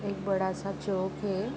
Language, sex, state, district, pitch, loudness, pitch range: Hindi, female, Uttar Pradesh, Jalaun, 195 Hz, -32 LUFS, 190-200 Hz